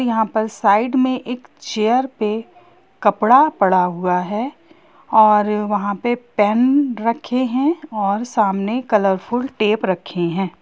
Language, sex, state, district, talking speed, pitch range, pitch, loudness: Hindi, female, Bihar, Gopalganj, 130 wpm, 205-255 Hz, 220 Hz, -18 LUFS